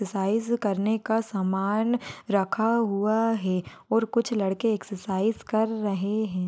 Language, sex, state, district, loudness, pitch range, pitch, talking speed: Hindi, female, Maharashtra, Sindhudurg, -26 LUFS, 195-225 Hz, 215 Hz, 130 wpm